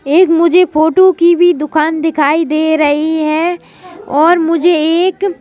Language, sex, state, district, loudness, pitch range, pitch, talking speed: Hindi, male, Madhya Pradesh, Bhopal, -11 LUFS, 310-350 Hz, 330 Hz, 145 wpm